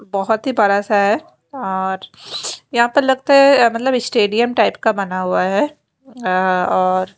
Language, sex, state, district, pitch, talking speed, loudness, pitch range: Hindi, female, Maharashtra, Mumbai Suburban, 220 Hz, 175 wpm, -16 LUFS, 190-260 Hz